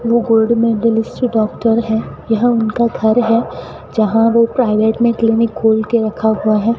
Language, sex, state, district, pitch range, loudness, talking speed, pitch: Hindi, female, Rajasthan, Bikaner, 220-235 Hz, -14 LUFS, 185 wpm, 225 Hz